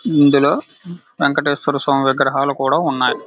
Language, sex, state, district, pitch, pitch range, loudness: Telugu, male, Andhra Pradesh, Krishna, 140 Hz, 140-145 Hz, -16 LUFS